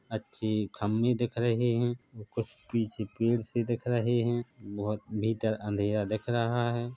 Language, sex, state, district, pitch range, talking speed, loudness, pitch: Hindi, male, Chhattisgarh, Bilaspur, 110-120 Hz, 165 wpm, -31 LUFS, 115 Hz